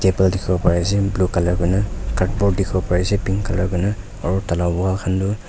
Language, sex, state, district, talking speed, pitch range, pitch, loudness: Nagamese, male, Nagaland, Kohima, 240 wpm, 90-100 Hz, 95 Hz, -20 LUFS